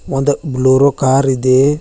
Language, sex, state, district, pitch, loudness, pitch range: Kannada, male, Karnataka, Bidar, 135 Hz, -13 LUFS, 130-140 Hz